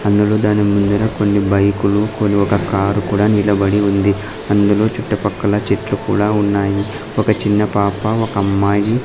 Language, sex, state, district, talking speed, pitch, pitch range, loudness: Telugu, male, Andhra Pradesh, Sri Satya Sai, 140 wpm, 105 Hz, 100-105 Hz, -16 LUFS